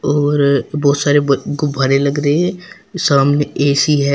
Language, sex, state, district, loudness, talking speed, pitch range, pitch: Hindi, female, Uttar Pradesh, Shamli, -15 LUFS, 145 wpm, 140-145 Hz, 145 Hz